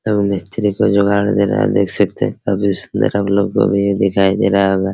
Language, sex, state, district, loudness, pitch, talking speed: Hindi, male, Bihar, Araria, -15 LUFS, 100 Hz, 245 wpm